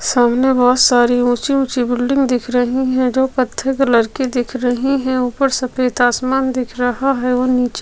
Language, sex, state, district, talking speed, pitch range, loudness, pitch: Hindi, female, Chhattisgarh, Sukma, 175 wpm, 245-265 Hz, -16 LUFS, 255 Hz